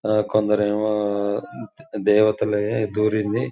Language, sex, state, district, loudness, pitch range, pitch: Telugu, male, Telangana, Nalgonda, -21 LUFS, 105-110 Hz, 105 Hz